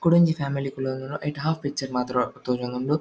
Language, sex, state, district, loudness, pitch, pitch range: Tulu, male, Karnataka, Dakshina Kannada, -26 LUFS, 135 Hz, 125-150 Hz